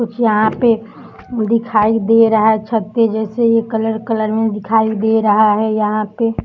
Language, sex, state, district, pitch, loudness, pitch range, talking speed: Hindi, female, Maharashtra, Nagpur, 220 Hz, -15 LUFS, 215-230 Hz, 185 wpm